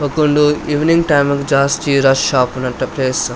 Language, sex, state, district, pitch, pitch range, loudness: Tulu, male, Karnataka, Dakshina Kannada, 140 Hz, 130-150 Hz, -14 LUFS